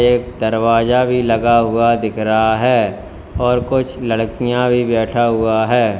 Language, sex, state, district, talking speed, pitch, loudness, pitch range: Hindi, male, Uttar Pradesh, Lalitpur, 150 wpm, 115 Hz, -15 LUFS, 110-125 Hz